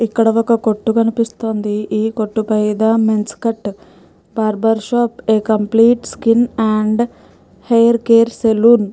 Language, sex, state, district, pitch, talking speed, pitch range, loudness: Telugu, female, Telangana, Nalgonda, 225 Hz, 130 wpm, 215-230 Hz, -15 LUFS